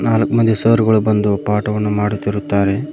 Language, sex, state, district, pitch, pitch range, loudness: Kannada, male, Karnataka, Koppal, 105 Hz, 105-110 Hz, -16 LUFS